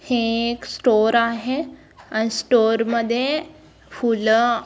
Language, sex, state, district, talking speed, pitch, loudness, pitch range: Marathi, female, Karnataka, Belgaum, 115 wpm, 235 Hz, -20 LUFS, 230-250 Hz